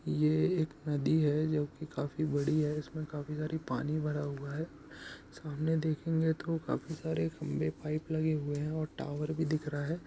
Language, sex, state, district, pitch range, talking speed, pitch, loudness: Hindi, male, Bihar, Saharsa, 145-160 Hz, 190 wpm, 155 Hz, -34 LUFS